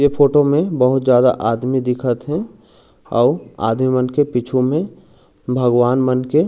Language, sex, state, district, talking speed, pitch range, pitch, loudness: Chhattisgarhi, male, Chhattisgarh, Raigarh, 155 wpm, 125-145 Hz, 130 Hz, -17 LUFS